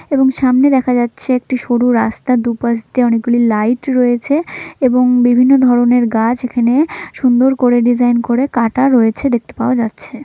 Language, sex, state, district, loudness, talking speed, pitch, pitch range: Bengali, female, West Bengal, Dakshin Dinajpur, -13 LUFS, 150 wpm, 245 Hz, 235-255 Hz